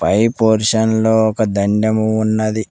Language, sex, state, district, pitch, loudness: Telugu, male, Telangana, Mahabubabad, 110 Hz, -15 LUFS